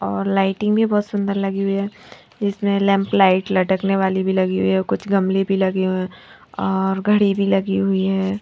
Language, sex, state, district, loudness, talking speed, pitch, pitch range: Hindi, female, Bihar, Patna, -19 LUFS, 215 wpm, 195 Hz, 190-200 Hz